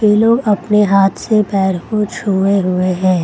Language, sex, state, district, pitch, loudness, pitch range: Hindi, female, Bihar, Gaya, 200 Hz, -14 LUFS, 190-210 Hz